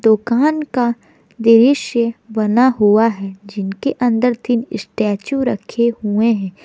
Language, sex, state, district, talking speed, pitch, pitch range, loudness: Hindi, female, Jharkhand, Garhwa, 115 wpm, 230 Hz, 210-245 Hz, -16 LUFS